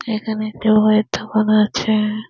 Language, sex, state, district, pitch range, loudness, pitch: Bengali, female, West Bengal, Cooch Behar, 215-220 Hz, -17 LUFS, 215 Hz